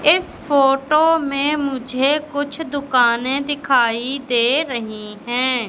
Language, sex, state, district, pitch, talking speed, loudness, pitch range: Hindi, female, Madhya Pradesh, Katni, 275 Hz, 105 wpm, -18 LUFS, 245-290 Hz